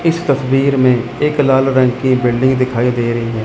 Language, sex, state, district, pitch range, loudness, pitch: Hindi, male, Chandigarh, Chandigarh, 120-135 Hz, -14 LUFS, 130 Hz